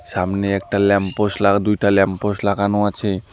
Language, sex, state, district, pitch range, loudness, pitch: Bengali, male, West Bengal, Alipurduar, 100-105 Hz, -18 LUFS, 100 Hz